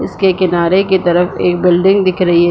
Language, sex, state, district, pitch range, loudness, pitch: Hindi, female, Bihar, Supaul, 175-190 Hz, -12 LUFS, 180 Hz